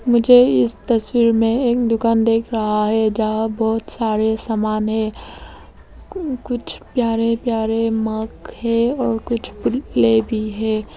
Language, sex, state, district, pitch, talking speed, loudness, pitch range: Hindi, female, Arunachal Pradesh, Lower Dibang Valley, 225 Hz, 130 wpm, -18 LUFS, 220-235 Hz